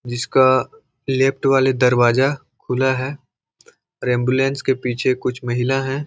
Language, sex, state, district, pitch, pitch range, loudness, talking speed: Hindi, male, Chhattisgarh, Balrampur, 130 Hz, 125-135 Hz, -18 LUFS, 140 wpm